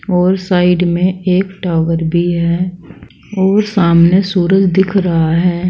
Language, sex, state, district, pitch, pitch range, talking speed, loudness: Hindi, female, Uttar Pradesh, Saharanpur, 180 Hz, 170-190 Hz, 135 wpm, -13 LUFS